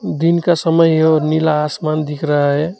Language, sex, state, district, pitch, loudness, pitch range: Hindi, male, West Bengal, Alipurduar, 155 Hz, -15 LUFS, 150-165 Hz